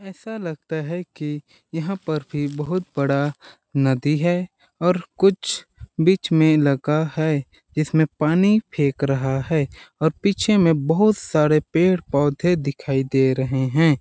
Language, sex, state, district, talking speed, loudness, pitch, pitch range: Hindi, male, Chhattisgarh, Balrampur, 135 wpm, -21 LUFS, 155 Hz, 140-175 Hz